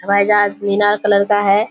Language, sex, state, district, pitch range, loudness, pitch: Hindi, female, Bihar, Kishanganj, 200-205 Hz, -14 LUFS, 205 Hz